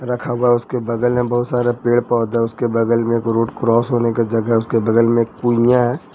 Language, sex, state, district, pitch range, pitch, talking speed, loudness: Hindi, male, Jharkhand, Ranchi, 115-120 Hz, 120 Hz, 245 wpm, -17 LUFS